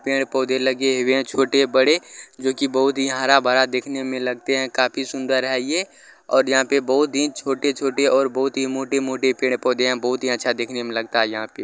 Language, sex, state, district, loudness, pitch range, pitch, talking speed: Maithili, male, Bihar, Vaishali, -20 LUFS, 125-135 Hz, 130 Hz, 210 wpm